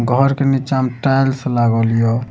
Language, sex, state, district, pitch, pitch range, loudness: Maithili, male, Bihar, Supaul, 130 Hz, 115-135 Hz, -16 LUFS